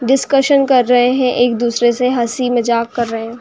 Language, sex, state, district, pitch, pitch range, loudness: Hindi, female, Uttar Pradesh, Jyotiba Phule Nagar, 245 Hz, 235-255 Hz, -14 LUFS